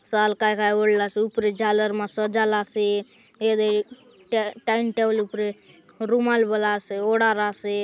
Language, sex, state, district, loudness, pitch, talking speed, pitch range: Halbi, female, Chhattisgarh, Bastar, -23 LUFS, 215 Hz, 90 wpm, 210-225 Hz